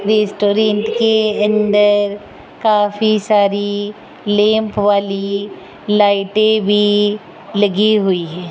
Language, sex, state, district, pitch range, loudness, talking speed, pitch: Hindi, female, Rajasthan, Jaipur, 205-215 Hz, -15 LUFS, 85 wpm, 205 Hz